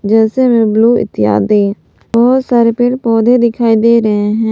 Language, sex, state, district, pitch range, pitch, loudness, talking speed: Hindi, female, Jharkhand, Palamu, 215-240 Hz, 230 Hz, -11 LUFS, 185 wpm